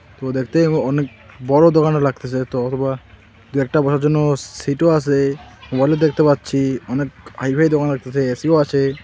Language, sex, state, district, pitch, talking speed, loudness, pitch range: Bengali, male, West Bengal, Alipurduar, 140 Hz, 160 wpm, -18 LUFS, 130-150 Hz